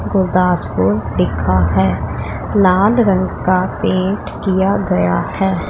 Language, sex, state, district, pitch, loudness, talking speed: Hindi, male, Punjab, Pathankot, 180 Hz, -15 LUFS, 105 wpm